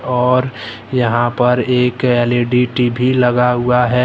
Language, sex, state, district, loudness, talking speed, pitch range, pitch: Hindi, male, Jharkhand, Deoghar, -15 LUFS, 135 wpm, 120-125 Hz, 125 Hz